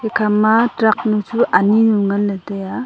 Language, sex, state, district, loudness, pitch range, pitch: Wancho, female, Arunachal Pradesh, Longding, -16 LUFS, 200-225 Hz, 215 Hz